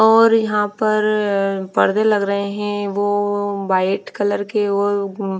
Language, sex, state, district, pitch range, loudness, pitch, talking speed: Hindi, female, Punjab, Fazilka, 200-210 Hz, -18 LUFS, 205 Hz, 135 wpm